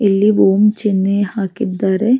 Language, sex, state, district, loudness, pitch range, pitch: Kannada, female, Karnataka, Mysore, -15 LUFS, 195-210 Hz, 200 Hz